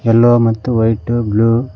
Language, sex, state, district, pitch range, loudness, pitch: Kannada, male, Karnataka, Koppal, 115-120 Hz, -13 LUFS, 115 Hz